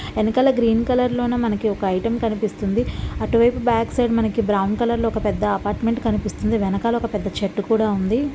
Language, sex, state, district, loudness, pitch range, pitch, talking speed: Telugu, female, Andhra Pradesh, Visakhapatnam, -20 LUFS, 205-235 Hz, 225 Hz, 195 wpm